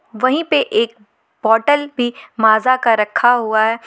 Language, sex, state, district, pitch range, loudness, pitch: Hindi, female, Jharkhand, Garhwa, 220-255 Hz, -15 LUFS, 235 Hz